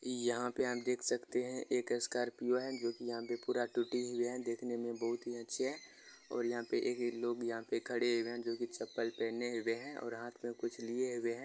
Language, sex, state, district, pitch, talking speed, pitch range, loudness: Maithili, male, Bihar, Darbhanga, 120 Hz, 240 wpm, 120-125 Hz, -38 LUFS